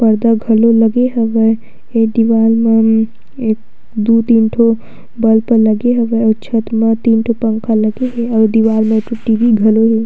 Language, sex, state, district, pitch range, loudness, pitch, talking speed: Chhattisgarhi, female, Chhattisgarh, Sukma, 220-230 Hz, -13 LUFS, 225 Hz, 175 wpm